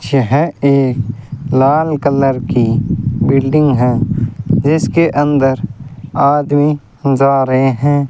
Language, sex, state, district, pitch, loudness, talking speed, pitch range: Hindi, male, Rajasthan, Bikaner, 140 Hz, -13 LUFS, 95 wpm, 130-145 Hz